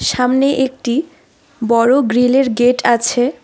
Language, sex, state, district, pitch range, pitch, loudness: Bengali, female, West Bengal, Alipurduar, 245-270 Hz, 250 Hz, -14 LUFS